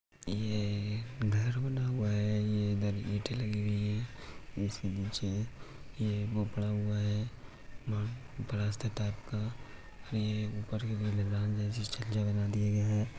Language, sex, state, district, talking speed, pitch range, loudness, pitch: Hindi, male, Uttar Pradesh, Etah, 130 wpm, 105-110 Hz, -35 LUFS, 105 Hz